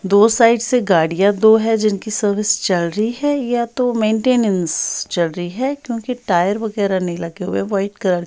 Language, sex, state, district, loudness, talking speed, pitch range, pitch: Hindi, female, Bihar, Patna, -17 LUFS, 180 wpm, 185-235 Hz, 210 Hz